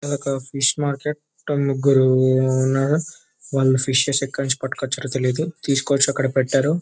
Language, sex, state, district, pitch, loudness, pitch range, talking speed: Telugu, male, Telangana, Nalgonda, 135 Hz, -20 LUFS, 130-145 Hz, 140 wpm